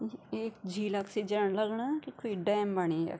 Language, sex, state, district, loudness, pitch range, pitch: Garhwali, female, Uttarakhand, Tehri Garhwal, -33 LUFS, 195-225 Hz, 210 Hz